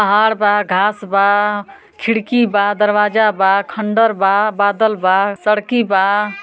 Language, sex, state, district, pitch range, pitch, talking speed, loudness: Bhojpuri, female, Uttar Pradesh, Ghazipur, 200-215 Hz, 210 Hz, 130 wpm, -15 LUFS